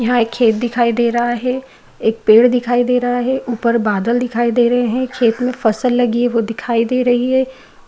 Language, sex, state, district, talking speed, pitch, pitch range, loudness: Hindi, female, Bihar, Madhepura, 220 wpm, 240 Hz, 235-250 Hz, -16 LUFS